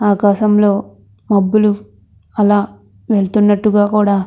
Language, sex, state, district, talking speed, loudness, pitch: Telugu, female, Andhra Pradesh, Krishna, 100 wpm, -14 LUFS, 205 Hz